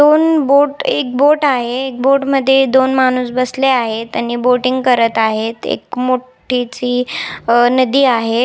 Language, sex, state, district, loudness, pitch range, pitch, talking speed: Marathi, female, Maharashtra, Nagpur, -14 LUFS, 245-270 Hz, 255 Hz, 155 wpm